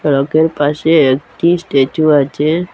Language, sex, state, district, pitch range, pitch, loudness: Bengali, female, Assam, Hailakandi, 140-165 Hz, 150 Hz, -13 LUFS